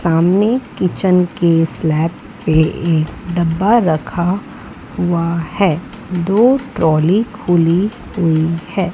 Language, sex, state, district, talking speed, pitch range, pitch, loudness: Hindi, female, Maharashtra, Gondia, 100 wpm, 165-195 Hz, 175 Hz, -15 LUFS